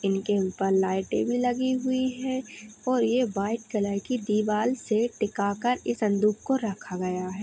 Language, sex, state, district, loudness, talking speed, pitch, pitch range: Hindi, female, Uttar Pradesh, Hamirpur, -27 LUFS, 180 wpm, 215 Hz, 200-250 Hz